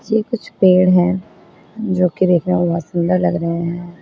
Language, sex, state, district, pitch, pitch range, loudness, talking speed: Hindi, female, Uttar Pradesh, Lalitpur, 180 Hz, 175-185 Hz, -16 LUFS, 195 wpm